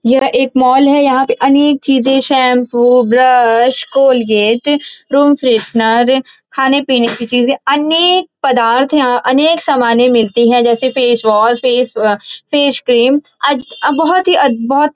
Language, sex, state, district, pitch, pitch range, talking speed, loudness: Hindi, female, Uttar Pradesh, Varanasi, 260 Hz, 240-280 Hz, 140 wpm, -11 LUFS